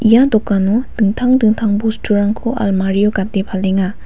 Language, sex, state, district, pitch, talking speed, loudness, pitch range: Garo, female, Meghalaya, West Garo Hills, 210 Hz, 120 wpm, -15 LUFS, 195-225 Hz